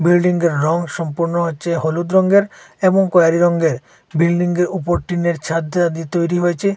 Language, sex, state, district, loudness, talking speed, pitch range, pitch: Bengali, male, Assam, Hailakandi, -17 LUFS, 150 wpm, 165-175 Hz, 175 Hz